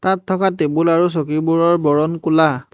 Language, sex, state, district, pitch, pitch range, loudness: Assamese, male, Assam, Hailakandi, 165 Hz, 155-175 Hz, -16 LUFS